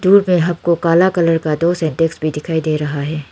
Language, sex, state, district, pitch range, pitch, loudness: Hindi, female, Arunachal Pradesh, Lower Dibang Valley, 155-170 Hz, 165 Hz, -16 LUFS